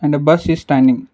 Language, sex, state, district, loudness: English, male, Karnataka, Bangalore, -14 LUFS